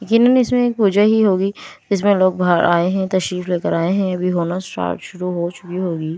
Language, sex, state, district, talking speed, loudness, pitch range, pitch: Hindi, female, Delhi, New Delhi, 225 wpm, -17 LUFS, 175-205 Hz, 185 Hz